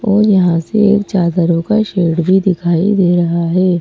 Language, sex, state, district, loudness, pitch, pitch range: Hindi, female, Madhya Pradesh, Bhopal, -13 LUFS, 180 Hz, 170-205 Hz